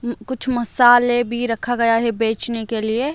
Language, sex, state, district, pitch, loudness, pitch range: Hindi, female, Odisha, Malkangiri, 240 Hz, -18 LUFS, 230-245 Hz